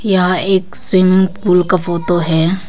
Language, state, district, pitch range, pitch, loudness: Hindi, Arunachal Pradesh, Papum Pare, 175-190 Hz, 185 Hz, -13 LUFS